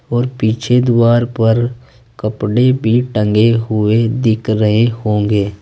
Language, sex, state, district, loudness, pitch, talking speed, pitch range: Hindi, male, Uttar Pradesh, Saharanpur, -14 LUFS, 115 Hz, 115 wpm, 110-120 Hz